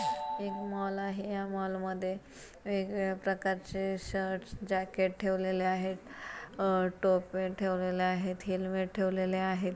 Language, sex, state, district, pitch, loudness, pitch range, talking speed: Marathi, female, Maharashtra, Pune, 190 Hz, -34 LUFS, 185-195 Hz, 110 wpm